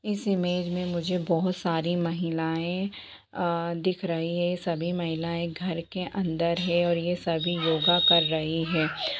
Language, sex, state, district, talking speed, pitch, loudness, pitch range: Hindi, female, Jharkhand, Sahebganj, 155 wpm, 170 Hz, -27 LUFS, 165-180 Hz